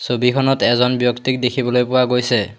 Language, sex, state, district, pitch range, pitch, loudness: Assamese, male, Assam, Hailakandi, 120-130 Hz, 125 Hz, -17 LUFS